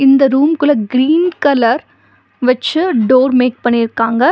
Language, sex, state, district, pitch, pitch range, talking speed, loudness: Tamil, female, Tamil Nadu, Nilgiris, 260 Hz, 245-290 Hz, 110 wpm, -13 LUFS